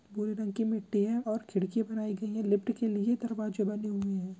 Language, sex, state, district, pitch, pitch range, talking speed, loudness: Hindi, female, Rajasthan, Churu, 215 Hz, 205-220 Hz, 230 wpm, -32 LUFS